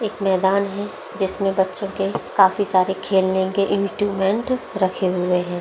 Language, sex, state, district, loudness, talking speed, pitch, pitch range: Hindi, female, Bihar, Begusarai, -20 LUFS, 170 wpm, 195 Hz, 190-200 Hz